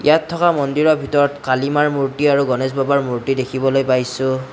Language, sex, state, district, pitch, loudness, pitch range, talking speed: Assamese, male, Assam, Kamrup Metropolitan, 135 Hz, -17 LUFS, 130-145 Hz, 160 wpm